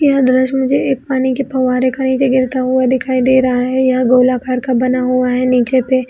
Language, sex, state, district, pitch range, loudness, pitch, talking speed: Hindi, female, Chhattisgarh, Bilaspur, 255-260 Hz, -14 LUFS, 255 Hz, 235 wpm